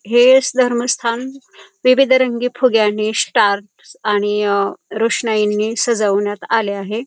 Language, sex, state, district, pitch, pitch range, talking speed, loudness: Marathi, female, Maharashtra, Pune, 225 Hz, 210-250 Hz, 100 wpm, -16 LUFS